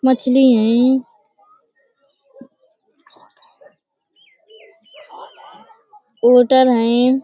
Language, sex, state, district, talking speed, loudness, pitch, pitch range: Hindi, female, Uttar Pradesh, Budaun, 40 wpm, -14 LUFS, 265 Hz, 245-405 Hz